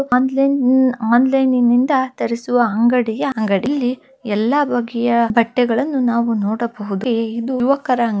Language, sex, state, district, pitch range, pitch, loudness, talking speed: Kannada, female, Karnataka, Bellary, 230-260 Hz, 245 Hz, -17 LUFS, 110 wpm